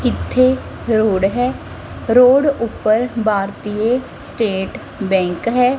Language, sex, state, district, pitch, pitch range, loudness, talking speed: Punjabi, female, Punjab, Kapurthala, 230 Hz, 210-250 Hz, -17 LUFS, 95 wpm